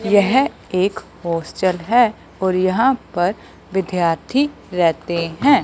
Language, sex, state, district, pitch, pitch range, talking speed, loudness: Hindi, male, Punjab, Fazilka, 190 Hz, 175-235 Hz, 105 wpm, -19 LUFS